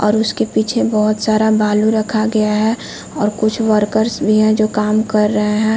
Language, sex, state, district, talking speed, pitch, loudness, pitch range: Hindi, female, Chhattisgarh, Korba, 195 wpm, 215 Hz, -15 LUFS, 210-220 Hz